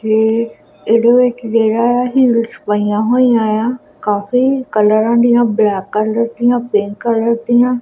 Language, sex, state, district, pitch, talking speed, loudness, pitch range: Punjabi, female, Punjab, Kapurthala, 230 Hz, 130 wpm, -14 LUFS, 215-240 Hz